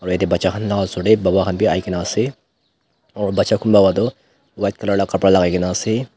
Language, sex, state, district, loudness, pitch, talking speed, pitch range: Nagamese, male, Nagaland, Dimapur, -18 LUFS, 95 Hz, 225 wpm, 90-110 Hz